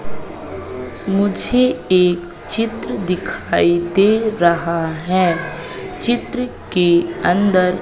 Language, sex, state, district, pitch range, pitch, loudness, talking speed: Hindi, female, Madhya Pradesh, Katni, 175-215 Hz, 185 Hz, -17 LUFS, 75 wpm